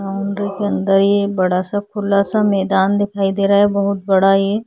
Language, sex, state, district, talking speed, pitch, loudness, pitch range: Hindi, female, Chhattisgarh, Korba, 230 wpm, 200 Hz, -16 LUFS, 195-205 Hz